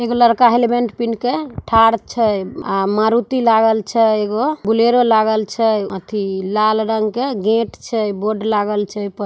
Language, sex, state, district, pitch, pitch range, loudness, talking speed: Maithili, female, Bihar, Samastipur, 220 Hz, 210-235 Hz, -16 LUFS, 155 wpm